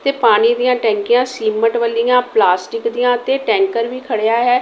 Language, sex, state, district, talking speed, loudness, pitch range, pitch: Punjabi, female, Punjab, Kapurthala, 170 wpm, -15 LUFS, 230-255 Hz, 245 Hz